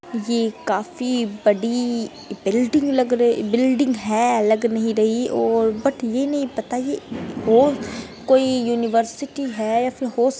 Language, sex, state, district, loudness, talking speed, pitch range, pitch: Hindi, female, Uttar Pradesh, Hamirpur, -20 LUFS, 145 wpm, 225-260 Hz, 235 Hz